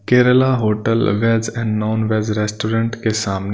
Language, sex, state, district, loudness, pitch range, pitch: Hindi, male, Punjab, Kapurthala, -17 LUFS, 105-115 Hz, 110 Hz